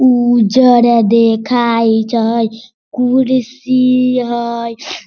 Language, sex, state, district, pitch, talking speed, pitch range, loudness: Hindi, female, Bihar, Sitamarhi, 240 Hz, 60 wpm, 230-250 Hz, -12 LUFS